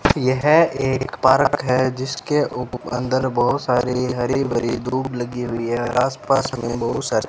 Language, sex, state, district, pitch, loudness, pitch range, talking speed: Hindi, male, Rajasthan, Bikaner, 130 Hz, -20 LUFS, 125-135 Hz, 175 wpm